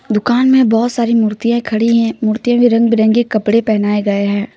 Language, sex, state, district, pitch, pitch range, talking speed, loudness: Hindi, female, Jharkhand, Deoghar, 230 Hz, 215-235 Hz, 195 wpm, -13 LUFS